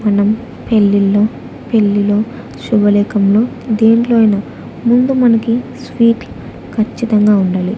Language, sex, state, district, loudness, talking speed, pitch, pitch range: Telugu, female, Andhra Pradesh, Annamaya, -13 LUFS, 85 wpm, 220 Hz, 205-235 Hz